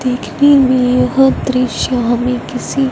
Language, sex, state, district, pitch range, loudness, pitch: Hindi, female, Punjab, Fazilka, 250-270 Hz, -13 LUFS, 250 Hz